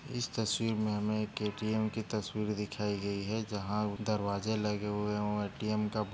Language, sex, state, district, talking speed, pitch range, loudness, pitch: Hindi, male, Maharashtra, Sindhudurg, 185 wpm, 105-110 Hz, -34 LUFS, 105 Hz